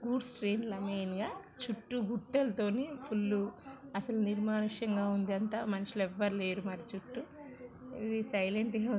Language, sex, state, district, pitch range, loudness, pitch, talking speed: Telugu, female, Andhra Pradesh, Chittoor, 200-240 Hz, -35 LUFS, 215 Hz, 125 wpm